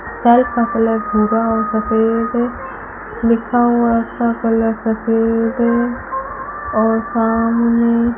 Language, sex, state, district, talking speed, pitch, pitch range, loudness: Hindi, female, Rajasthan, Bikaner, 105 wpm, 230 Hz, 225-240 Hz, -16 LUFS